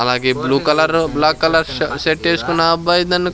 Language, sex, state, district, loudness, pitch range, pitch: Telugu, male, Andhra Pradesh, Sri Satya Sai, -15 LUFS, 150-170 Hz, 160 Hz